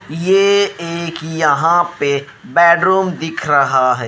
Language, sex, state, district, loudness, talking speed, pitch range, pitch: Hindi, male, Bihar, Kaimur, -14 LUFS, 120 wpm, 145-180 Hz, 170 Hz